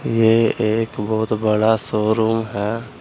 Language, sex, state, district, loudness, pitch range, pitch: Hindi, male, Uttar Pradesh, Saharanpur, -19 LUFS, 110-115 Hz, 110 Hz